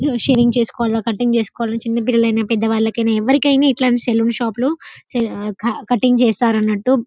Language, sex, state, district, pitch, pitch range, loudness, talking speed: Telugu, female, Telangana, Karimnagar, 235 Hz, 225-250 Hz, -17 LUFS, 110 wpm